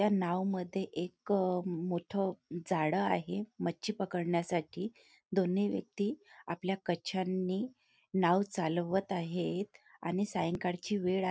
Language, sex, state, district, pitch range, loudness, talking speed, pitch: Marathi, female, Maharashtra, Nagpur, 175-195 Hz, -35 LUFS, 110 wpm, 185 Hz